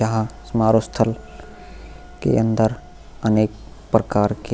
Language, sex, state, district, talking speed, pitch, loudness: Hindi, male, Goa, North and South Goa, 120 wpm, 110 Hz, -20 LUFS